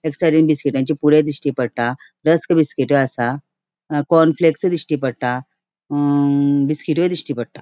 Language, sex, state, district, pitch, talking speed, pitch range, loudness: Konkani, female, Goa, North and South Goa, 150 Hz, 125 wpm, 140-160 Hz, -18 LUFS